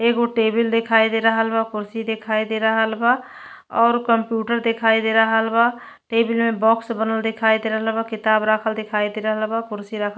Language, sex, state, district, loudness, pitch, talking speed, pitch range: Bhojpuri, female, Uttar Pradesh, Deoria, -20 LUFS, 225 Hz, 200 wpm, 220-230 Hz